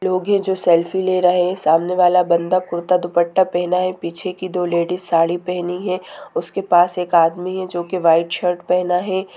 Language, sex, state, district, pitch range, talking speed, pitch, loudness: Hindi, female, Bihar, Sitamarhi, 175-185 Hz, 190 wpm, 180 Hz, -18 LUFS